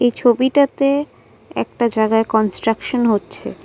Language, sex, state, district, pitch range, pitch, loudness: Bengali, female, Assam, Kamrup Metropolitan, 225-275 Hz, 240 Hz, -17 LUFS